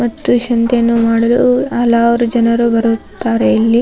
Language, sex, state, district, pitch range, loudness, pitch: Kannada, female, Karnataka, Raichur, 230-240 Hz, -13 LUFS, 235 Hz